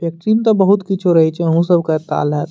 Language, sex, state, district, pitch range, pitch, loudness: Maithili, male, Bihar, Madhepura, 160-195 Hz, 170 Hz, -15 LUFS